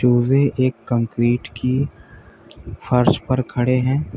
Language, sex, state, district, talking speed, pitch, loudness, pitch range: Hindi, male, Uttar Pradesh, Lalitpur, 115 wpm, 125 Hz, -19 LUFS, 120-130 Hz